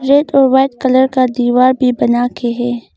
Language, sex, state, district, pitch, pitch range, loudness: Hindi, female, Arunachal Pradesh, Longding, 255 Hz, 245-265 Hz, -13 LUFS